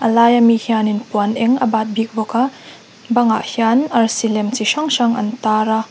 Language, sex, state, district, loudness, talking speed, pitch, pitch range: Mizo, female, Mizoram, Aizawl, -16 LUFS, 215 wpm, 225 Hz, 220-240 Hz